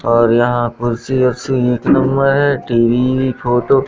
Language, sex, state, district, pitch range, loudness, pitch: Hindi, male, Madhya Pradesh, Katni, 120-135 Hz, -14 LUFS, 125 Hz